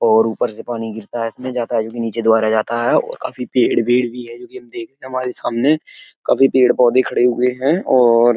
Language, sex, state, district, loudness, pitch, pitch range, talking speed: Hindi, male, Uttar Pradesh, Etah, -17 LUFS, 120 Hz, 115-125 Hz, 260 wpm